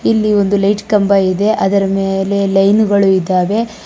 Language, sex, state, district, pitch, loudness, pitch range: Kannada, female, Karnataka, Bangalore, 200 Hz, -13 LUFS, 195-210 Hz